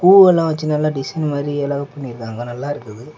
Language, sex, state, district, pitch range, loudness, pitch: Tamil, male, Tamil Nadu, Kanyakumari, 130-155 Hz, -18 LUFS, 145 Hz